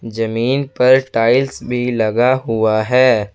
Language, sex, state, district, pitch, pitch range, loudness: Hindi, male, Jharkhand, Ranchi, 120 Hz, 115-130 Hz, -15 LUFS